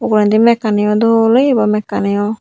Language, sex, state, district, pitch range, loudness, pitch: Chakma, female, Tripura, Unakoti, 210-230 Hz, -13 LUFS, 215 Hz